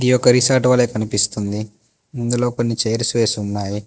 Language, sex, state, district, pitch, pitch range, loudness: Telugu, male, Telangana, Hyderabad, 115 Hz, 105-125 Hz, -18 LUFS